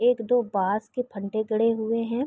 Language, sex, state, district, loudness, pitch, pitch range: Hindi, female, Chhattisgarh, Raigarh, -26 LUFS, 230 Hz, 215-245 Hz